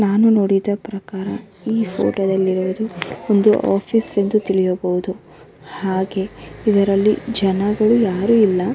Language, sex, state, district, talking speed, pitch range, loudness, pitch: Kannada, female, Karnataka, Dharwad, 105 wpm, 190-215 Hz, -18 LUFS, 200 Hz